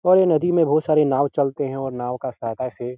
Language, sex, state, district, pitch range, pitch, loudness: Hindi, male, Bihar, Araria, 125-155 Hz, 140 Hz, -21 LUFS